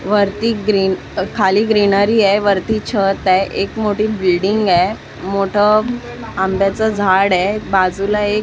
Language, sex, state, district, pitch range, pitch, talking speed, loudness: Marathi, female, Maharashtra, Mumbai Suburban, 195-215 Hz, 205 Hz, 140 wpm, -15 LUFS